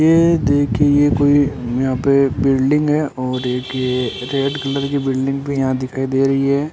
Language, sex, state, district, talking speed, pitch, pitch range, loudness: Hindi, male, Rajasthan, Bikaner, 185 wpm, 135 Hz, 130-145 Hz, -17 LUFS